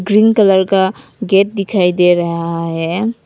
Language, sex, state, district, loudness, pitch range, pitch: Hindi, female, Nagaland, Kohima, -13 LUFS, 175-205 Hz, 190 Hz